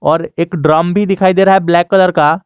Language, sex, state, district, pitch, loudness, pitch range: Hindi, male, Jharkhand, Garhwa, 175 Hz, -11 LUFS, 165-190 Hz